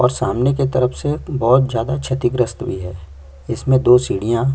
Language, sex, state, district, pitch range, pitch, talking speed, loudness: Hindi, male, Chhattisgarh, Kabirdham, 115-130 Hz, 125 Hz, 185 wpm, -18 LUFS